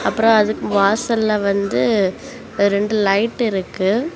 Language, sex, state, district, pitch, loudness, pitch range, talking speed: Tamil, female, Tamil Nadu, Kanyakumari, 210 Hz, -17 LUFS, 200-225 Hz, 100 wpm